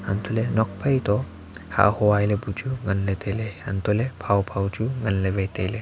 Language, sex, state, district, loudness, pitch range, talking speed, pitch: Wancho, male, Arunachal Pradesh, Longding, -24 LUFS, 100-110 Hz, 225 wpm, 100 Hz